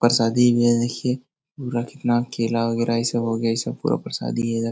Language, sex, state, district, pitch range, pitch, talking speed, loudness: Hindi, male, Bihar, Jahanabad, 115-120 Hz, 120 Hz, 215 wpm, -22 LUFS